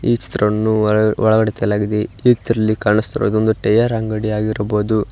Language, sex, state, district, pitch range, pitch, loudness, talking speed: Kannada, male, Karnataka, Koppal, 105-110 Hz, 110 Hz, -16 LUFS, 115 wpm